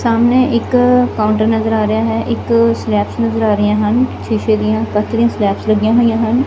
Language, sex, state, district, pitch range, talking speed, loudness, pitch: Punjabi, female, Punjab, Fazilka, 210-230 Hz, 185 wpm, -14 LUFS, 220 Hz